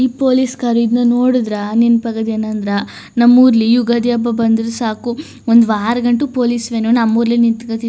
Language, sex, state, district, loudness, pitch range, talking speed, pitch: Kannada, female, Karnataka, Chamarajanagar, -14 LUFS, 225-240 Hz, 135 wpm, 235 Hz